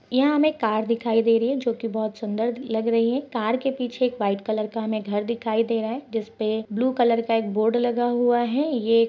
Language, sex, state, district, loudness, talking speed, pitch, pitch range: Hindi, female, Chhattisgarh, Bastar, -23 LUFS, 250 wpm, 230 Hz, 220-245 Hz